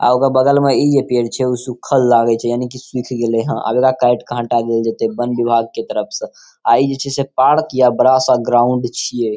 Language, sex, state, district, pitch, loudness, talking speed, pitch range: Maithili, male, Bihar, Saharsa, 125 Hz, -15 LUFS, 260 wpm, 120-130 Hz